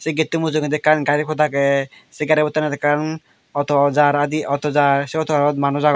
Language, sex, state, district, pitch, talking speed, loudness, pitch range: Chakma, male, Tripura, Dhalai, 150 Hz, 210 wpm, -18 LUFS, 145-155 Hz